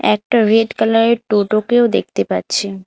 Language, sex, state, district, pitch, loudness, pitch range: Bengali, female, West Bengal, Alipurduar, 215 Hz, -15 LUFS, 200-225 Hz